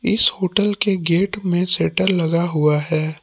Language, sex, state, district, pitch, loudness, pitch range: Hindi, male, Jharkhand, Palamu, 180 Hz, -16 LUFS, 165-200 Hz